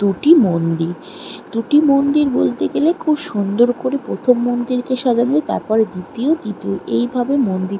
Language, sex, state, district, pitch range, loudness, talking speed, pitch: Bengali, female, West Bengal, Malda, 200-280 Hz, -17 LUFS, 160 wpm, 245 Hz